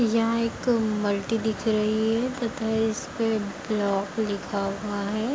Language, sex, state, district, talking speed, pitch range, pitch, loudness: Hindi, female, Uttar Pradesh, Hamirpur, 135 wpm, 205-230 Hz, 220 Hz, -26 LUFS